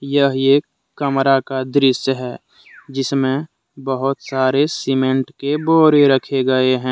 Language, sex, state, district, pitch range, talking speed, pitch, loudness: Hindi, male, Jharkhand, Deoghar, 130-140 Hz, 130 wpm, 135 Hz, -17 LUFS